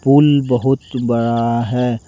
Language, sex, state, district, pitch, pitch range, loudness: Hindi, male, Jharkhand, Deoghar, 125 Hz, 115-135 Hz, -16 LUFS